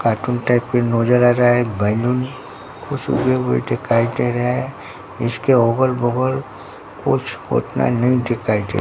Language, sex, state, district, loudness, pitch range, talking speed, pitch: Hindi, male, Bihar, Katihar, -18 LUFS, 110-125 Hz, 170 wpm, 120 Hz